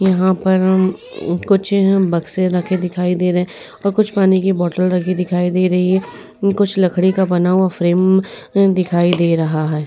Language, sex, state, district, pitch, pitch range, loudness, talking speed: Hindi, female, Uttar Pradesh, Varanasi, 185 Hz, 180-190 Hz, -16 LUFS, 165 wpm